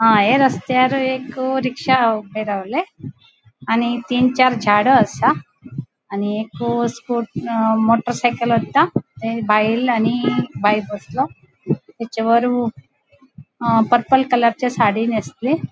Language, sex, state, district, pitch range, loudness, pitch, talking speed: Konkani, female, Goa, North and South Goa, 220-255 Hz, -18 LUFS, 235 Hz, 120 wpm